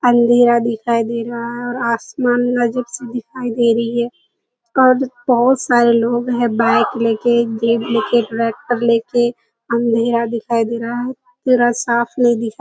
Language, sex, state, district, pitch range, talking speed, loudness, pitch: Hindi, female, Bihar, Kishanganj, 230-245 Hz, 170 wpm, -16 LUFS, 240 Hz